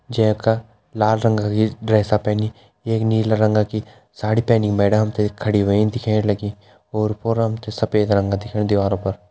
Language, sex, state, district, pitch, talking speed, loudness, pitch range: Hindi, male, Uttarakhand, Tehri Garhwal, 105 Hz, 185 wpm, -19 LUFS, 105-110 Hz